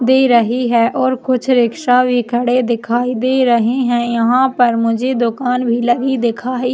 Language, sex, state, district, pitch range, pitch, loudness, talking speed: Hindi, female, Chhattisgarh, Jashpur, 235-255 Hz, 245 Hz, -14 LUFS, 185 wpm